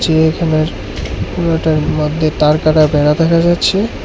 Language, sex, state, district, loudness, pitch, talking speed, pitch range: Bengali, male, Tripura, West Tripura, -13 LUFS, 155 Hz, 105 wpm, 150-165 Hz